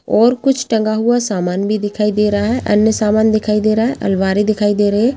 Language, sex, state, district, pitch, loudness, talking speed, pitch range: Hindi, female, Bihar, Jahanabad, 215 Hz, -15 LUFS, 245 wpm, 205-225 Hz